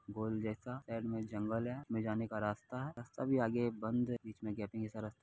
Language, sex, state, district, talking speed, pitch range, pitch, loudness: Hindi, male, Bihar, Purnia, 255 wpm, 110-120 Hz, 110 Hz, -40 LUFS